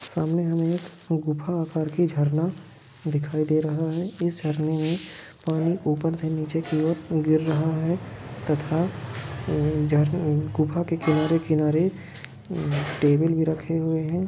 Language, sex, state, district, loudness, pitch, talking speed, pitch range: Hindi, male, Goa, North and South Goa, -25 LUFS, 160 Hz, 130 wpm, 150-165 Hz